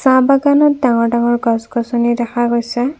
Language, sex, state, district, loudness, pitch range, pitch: Assamese, female, Assam, Kamrup Metropolitan, -14 LUFS, 235-260 Hz, 240 Hz